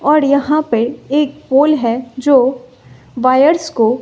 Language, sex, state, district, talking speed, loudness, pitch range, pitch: Hindi, female, Bihar, West Champaran, 135 wpm, -14 LUFS, 250-295 Hz, 270 Hz